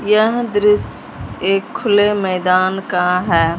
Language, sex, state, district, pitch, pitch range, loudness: Hindi, male, Punjab, Fazilka, 195 Hz, 185-210 Hz, -16 LUFS